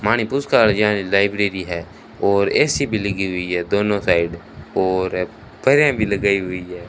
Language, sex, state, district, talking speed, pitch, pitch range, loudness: Hindi, male, Rajasthan, Bikaner, 130 wpm, 100 Hz, 90-110 Hz, -19 LUFS